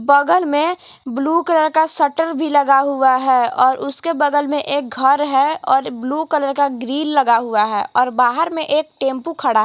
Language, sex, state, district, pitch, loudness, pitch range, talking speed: Hindi, female, Jharkhand, Garhwa, 285 Hz, -16 LUFS, 260-315 Hz, 200 wpm